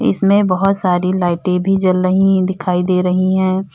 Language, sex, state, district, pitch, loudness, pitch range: Hindi, female, Uttar Pradesh, Lalitpur, 185 Hz, -15 LUFS, 180-195 Hz